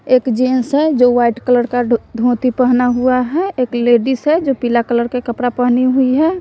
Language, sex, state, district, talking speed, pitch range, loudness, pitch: Hindi, female, Bihar, West Champaran, 215 wpm, 245-255 Hz, -14 LUFS, 250 Hz